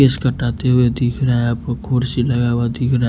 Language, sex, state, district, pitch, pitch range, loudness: Hindi, male, Punjab, Kapurthala, 125 Hz, 120-130 Hz, -18 LUFS